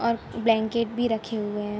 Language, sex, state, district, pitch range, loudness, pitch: Hindi, female, Bihar, Sitamarhi, 215-230 Hz, -26 LUFS, 225 Hz